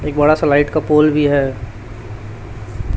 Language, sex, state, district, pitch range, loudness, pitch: Hindi, male, Chhattisgarh, Raipur, 110-150 Hz, -14 LUFS, 135 Hz